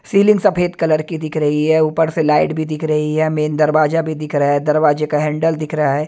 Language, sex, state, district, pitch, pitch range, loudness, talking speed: Hindi, male, Himachal Pradesh, Shimla, 155 Hz, 150-160 Hz, -16 LUFS, 255 wpm